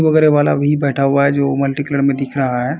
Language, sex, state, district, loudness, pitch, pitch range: Hindi, male, Uttar Pradesh, Varanasi, -15 LUFS, 140 Hz, 135-145 Hz